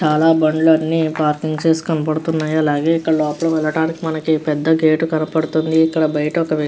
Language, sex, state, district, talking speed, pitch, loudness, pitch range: Telugu, female, Andhra Pradesh, Krishna, 160 wpm, 160 Hz, -17 LUFS, 155-160 Hz